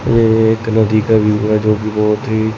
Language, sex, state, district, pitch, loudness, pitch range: Hindi, male, Chandigarh, Chandigarh, 110 Hz, -14 LUFS, 105-110 Hz